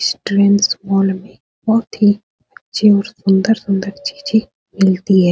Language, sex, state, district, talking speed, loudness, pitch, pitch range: Hindi, female, Bihar, Supaul, 125 wpm, -15 LUFS, 200 Hz, 195-220 Hz